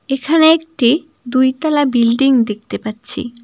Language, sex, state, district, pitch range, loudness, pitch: Bengali, female, West Bengal, Cooch Behar, 240-295 Hz, -15 LUFS, 260 Hz